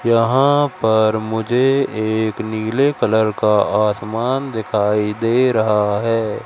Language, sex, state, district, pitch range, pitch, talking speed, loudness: Hindi, male, Madhya Pradesh, Katni, 110-120 Hz, 110 Hz, 110 wpm, -17 LUFS